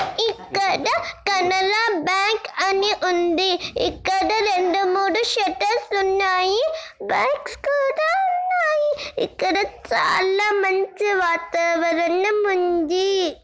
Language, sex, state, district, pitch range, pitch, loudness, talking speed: Telugu, female, Telangana, Nalgonda, 340-395 Hz, 375 Hz, -20 LUFS, 80 wpm